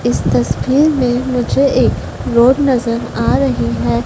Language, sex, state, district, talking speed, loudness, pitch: Hindi, female, Madhya Pradesh, Dhar, 150 wpm, -14 LUFS, 240 Hz